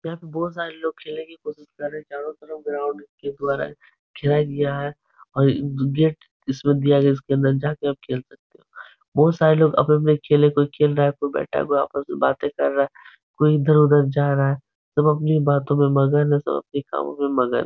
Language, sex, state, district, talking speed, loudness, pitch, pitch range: Hindi, male, Uttar Pradesh, Etah, 225 wpm, -21 LUFS, 145 Hz, 140-150 Hz